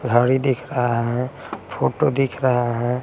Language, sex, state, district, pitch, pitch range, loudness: Hindi, male, Bihar, Patna, 125 Hz, 120-130 Hz, -21 LUFS